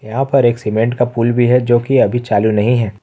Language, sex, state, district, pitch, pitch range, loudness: Hindi, male, Jharkhand, Ranchi, 120 Hz, 110-125 Hz, -14 LUFS